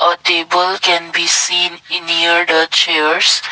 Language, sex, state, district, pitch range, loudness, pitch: English, male, Assam, Kamrup Metropolitan, 170-180 Hz, -12 LUFS, 170 Hz